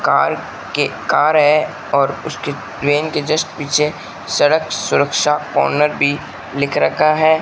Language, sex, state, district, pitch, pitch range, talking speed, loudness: Hindi, male, Rajasthan, Bikaner, 150 Hz, 145-155 Hz, 135 wpm, -16 LUFS